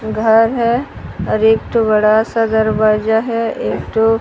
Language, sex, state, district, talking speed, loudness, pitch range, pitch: Hindi, female, Odisha, Sambalpur, 155 wpm, -14 LUFS, 220-230 Hz, 220 Hz